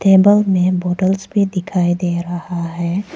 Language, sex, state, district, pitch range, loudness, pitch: Hindi, female, Arunachal Pradesh, Papum Pare, 175-195 Hz, -16 LUFS, 180 Hz